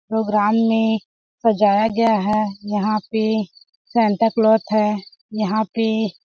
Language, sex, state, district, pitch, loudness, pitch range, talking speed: Hindi, female, Chhattisgarh, Balrampur, 215 Hz, -19 LUFS, 210-225 Hz, 125 wpm